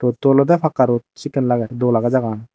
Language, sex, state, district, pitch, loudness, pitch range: Chakma, male, Tripura, Dhalai, 125 Hz, -17 LUFS, 120-135 Hz